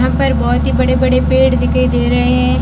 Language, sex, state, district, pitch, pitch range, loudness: Hindi, female, Rajasthan, Bikaner, 80 Hz, 80-85 Hz, -13 LUFS